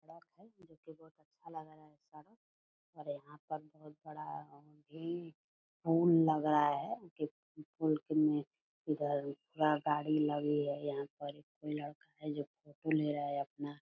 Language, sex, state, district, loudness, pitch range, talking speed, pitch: Hindi, female, Bihar, Purnia, -36 LUFS, 145-155 Hz, 60 wpm, 150 Hz